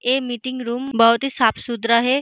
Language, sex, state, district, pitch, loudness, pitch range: Hindi, female, Uttar Pradesh, Jalaun, 245 Hz, -19 LUFS, 235-260 Hz